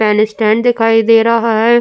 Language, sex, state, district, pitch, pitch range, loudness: Hindi, female, Uttar Pradesh, Jyotiba Phule Nagar, 225 Hz, 220-230 Hz, -11 LUFS